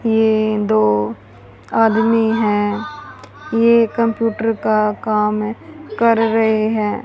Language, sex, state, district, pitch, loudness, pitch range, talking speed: Hindi, female, Haryana, Rohtak, 220 Hz, -16 LUFS, 210-225 Hz, 100 wpm